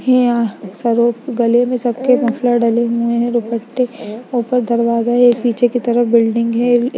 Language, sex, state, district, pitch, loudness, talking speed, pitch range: Hindi, female, Bihar, Lakhisarai, 240 Hz, -15 LUFS, 155 wpm, 235-245 Hz